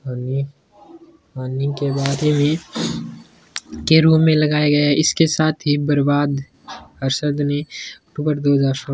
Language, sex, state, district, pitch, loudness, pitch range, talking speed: Hindi, male, Rajasthan, Churu, 145 Hz, -18 LUFS, 140-155 Hz, 80 wpm